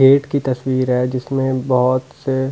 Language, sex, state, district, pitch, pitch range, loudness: Hindi, male, Delhi, New Delhi, 130 Hz, 130-135 Hz, -18 LUFS